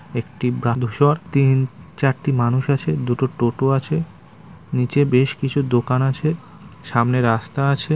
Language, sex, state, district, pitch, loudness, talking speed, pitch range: Bengali, male, West Bengal, North 24 Parganas, 135 Hz, -20 LUFS, 130 wpm, 125-145 Hz